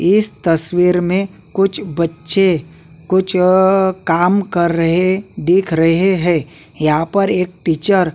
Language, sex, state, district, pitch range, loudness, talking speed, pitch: Hindi, male, Uttarakhand, Tehri Garhwal, 165-190 Hz, -15 LUFS, 135 wpm, 180 Hz